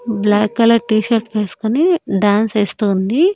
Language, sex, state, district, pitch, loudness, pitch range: Telugu, female, Andhra Pradesh, Annamaya, 215 Hz, -15 LUFS, 205-230 Hz